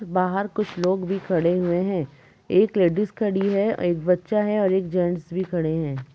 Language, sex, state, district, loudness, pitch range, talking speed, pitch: Hindi, female, Uttar Pradesh, Jalaun, -23 LUFS, 175-200 Hz, 215 wpm, 185 Hz